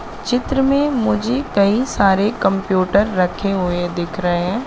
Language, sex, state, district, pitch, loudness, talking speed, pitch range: Hindi, female, Madhya Pradesh, Katni, 200 Hz, -17 LUFS, 130 wpm, 185-240 Hz